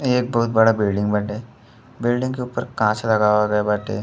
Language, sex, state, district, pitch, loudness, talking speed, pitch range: Bhojpuri, male, Uttar Pradesh, Gorakhpur, 110 Hz, -20 LUFS, 180 wpm, 105-120 Hz